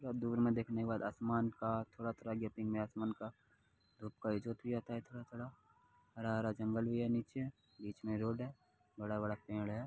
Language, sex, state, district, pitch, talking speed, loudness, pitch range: Hindi, male, Bihar, Purnia, 110 Hz, 150 wpm, -41 LUFS, 105-115 Hz